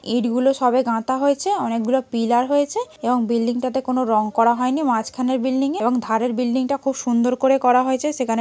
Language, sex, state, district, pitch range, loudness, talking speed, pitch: Bengali, female, West Bengal, Malda, 235-265 Hz, -20 LUFS, 200 wpm, 255 Hz